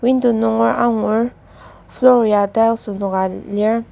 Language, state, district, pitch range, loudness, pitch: Ao, Nagaland, Kohima, 200-235 Hz, -16 LUFS, 225 Hz